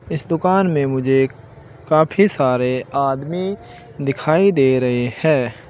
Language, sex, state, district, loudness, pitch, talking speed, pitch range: Hindi, male, Uttar Pradesh, Shamli, -18 LUFS, 140 Hz, 125 wpm, 130-165 Hz